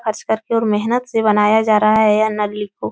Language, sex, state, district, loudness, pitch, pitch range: Hindi, female, Uttar Pradesh, Etah, -16 LUFS, 215 Hz, 210-220 Hz